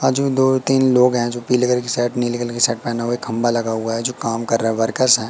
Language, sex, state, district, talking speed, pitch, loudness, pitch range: Hindi, male, Madhya Pradesh, Katni, 295 wpm, 120 Hz, -18 LUFS, 115-125 Hz